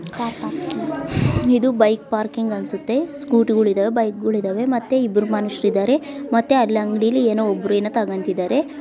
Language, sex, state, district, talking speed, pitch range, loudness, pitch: Kannada, female, Karnataka, Dakshina Kannada, 155 wpm, 210-250 Hz, -20 LUFS, 220 Hz